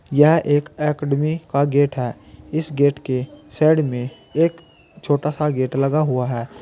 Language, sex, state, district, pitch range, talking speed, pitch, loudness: Hindi, male, Uttar Pradesh, Saharanpur, 135-155 Hz, 165 wpm, 145 Hz, -20 LUFS